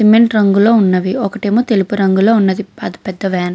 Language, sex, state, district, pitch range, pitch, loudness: Telugu, female, Andhra Pradesh, Krishna, 190-215 Hz, 205 Hz, -13 LUFS